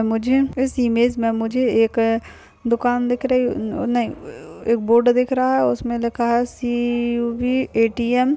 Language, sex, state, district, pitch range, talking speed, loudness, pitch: Hindi, female, Maharashtra, Sindhudurg, 230-250 Hz, 150 wpm, -20 LUFS, 240 Hz